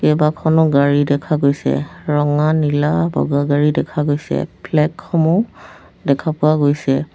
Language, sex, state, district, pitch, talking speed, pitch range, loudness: Assamese, female, Assam, Sonitpur, 150 Hz, 115 wpm, 140-155 Hz, -17 LUFS